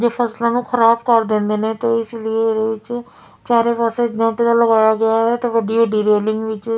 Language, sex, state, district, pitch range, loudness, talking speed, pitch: Punjabi, female, Punjab, Fazilka, 220-235 Hz, -17 LUFS, 210 wpm, 230 Hz